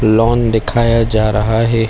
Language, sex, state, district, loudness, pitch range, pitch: Hindi, male, Chhattisgarh, Bilaspur, -13 LUFS, 110-115 Hz, 115 Hz